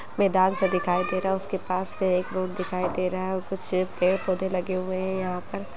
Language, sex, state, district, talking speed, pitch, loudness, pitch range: Hindi, female, Bihar, Muzaffarpur, 230 wpm, 185 Hz, -26 LUFS, 185-190 Hz